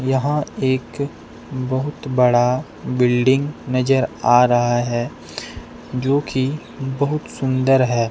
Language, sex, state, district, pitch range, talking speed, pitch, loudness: Hindi, male, Jharkhand, Deoghar, 120-135 Hz, 105 wpm, 130 Hz, -19 LUFS